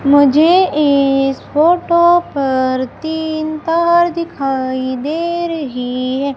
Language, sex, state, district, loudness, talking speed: Hindi, female, Madhya Pradesh, Umaria, -14 LUFS, 95 wpm